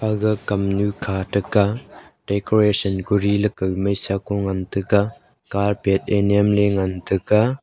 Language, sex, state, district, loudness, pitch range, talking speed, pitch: Wancho, male, Arunachal Pradesh, Longding, -20 LUFS, 100-105 Hz, 110 wpm, 100 Hz